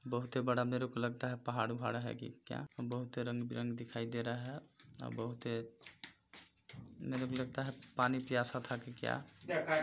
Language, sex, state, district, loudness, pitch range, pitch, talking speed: Hindi, male, Chhattisgarh, Balrampur, -40 LUFS, 120-130 Hz, 125 Hz, 175 wpm